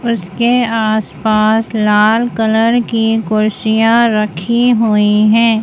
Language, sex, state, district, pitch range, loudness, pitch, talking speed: Hindi, female, Madhya Pradesh, Bhopal, 215-230 Hz, -12 LUFS, 220 Hz, 95 wpm